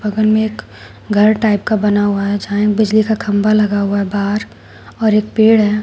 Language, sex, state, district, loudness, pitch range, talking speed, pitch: Hindi, female, Uttar Pradesh, Shamli, -14 LUFS, 205-215 Hz, 225 wpm, 210 Hz